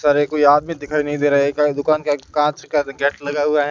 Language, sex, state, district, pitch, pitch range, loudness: Hindi, male, Rajasthan, Bikaner, 145 Hz, 145-150 Hz, -18 LUFS